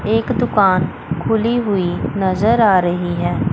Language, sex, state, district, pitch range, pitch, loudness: Hindi, female, Chandigarh, Chandigarh, 175-225 Hz, 195 Hz, -17 LUFS